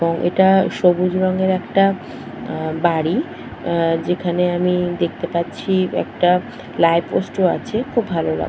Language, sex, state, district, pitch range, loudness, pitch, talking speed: Bengali, female, West Bengal, Purulia, 170-190 Hz, -18 LUFS, 180 Hz, 140 wpm